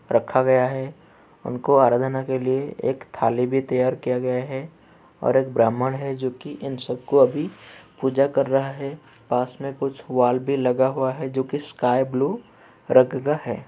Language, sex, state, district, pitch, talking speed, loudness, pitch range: Hindi, male, Uttar Pradesh, Etah, 130 Hz, 175 wpm, -22 LUFS, 125-135 Hz